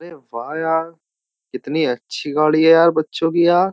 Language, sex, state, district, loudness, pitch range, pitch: Hindi, male, Uttar Pradesh, Jyotiba Phule Nagar, -17 LUFS, 150-165 Hz, 160 Hz